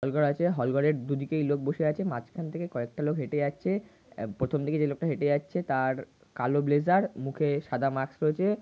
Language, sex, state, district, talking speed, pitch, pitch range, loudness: Bengali, male, West Bengal, North 24 Parganas, 195 wpm, 145 Hz, 135-160 Hz, -29 LUFS